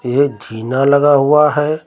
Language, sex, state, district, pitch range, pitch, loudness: Hindi, male, Uttar Pradesh, Lucknow, 130-150 Hz, 140 Hz, -13 LUFS